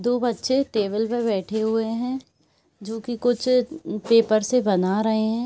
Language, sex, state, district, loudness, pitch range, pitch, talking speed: Hindi, female, Bihar, Araria, -22 LUFS, 220-245 Hz, 230 Hz, 155 wpm